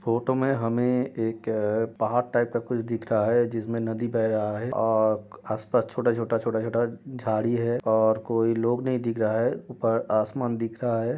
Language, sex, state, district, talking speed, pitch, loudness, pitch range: Hindi, male, Uttar Pradesh, Budaun, 195 wpm, 115 Hz, -26 LUFS, 110-120 Hz